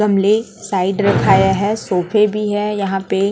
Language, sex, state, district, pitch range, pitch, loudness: Hindi, female, Chhattisgarh, Raipur, 195-210 Hz, 200 Hz, -16 LUFS